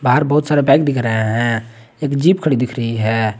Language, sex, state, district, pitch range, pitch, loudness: Hindi, male, Jharkhand, Garhwa, 115-145 Hz, 125 Hz, -16 LUFS